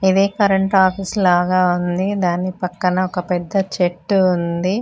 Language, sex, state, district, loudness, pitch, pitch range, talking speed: Telugu, female, Telangana, Mahabubabad, -18 LUFS, 185 Hz, 180-195 Hz, 135 wpm